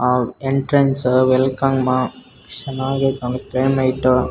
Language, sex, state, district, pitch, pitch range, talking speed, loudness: Kannada, male, Karnataka, Bellary, 130 Hz, 125-135 Hz, 85 wpm, -18 LUFS